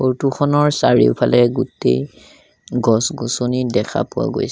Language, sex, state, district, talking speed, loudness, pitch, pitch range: Assamese, male, Assam, Sonitpur, 105 wpm, -17 LUFS, 125 Hz, 115-135 Hz